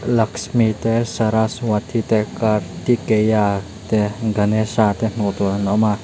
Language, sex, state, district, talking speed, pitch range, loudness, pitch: Mizo, male, Mizoram, Aizawl, 140 wpm, 105-115 Hz, -19 LUFS, 110 Hz